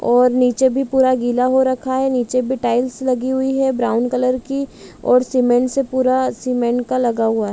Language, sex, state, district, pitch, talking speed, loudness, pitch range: Hindi, female, Chhattisgarh, Rajnandgaon, 255 Hz, 205 wpm, -17 LUFS, 245-260 Hz